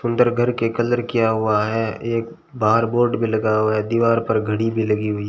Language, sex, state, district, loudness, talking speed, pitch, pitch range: Hindi, male, Rajasthan, Bikaner, -20 LUFS, 225 wpm, 115 Hz, 110-120 Hz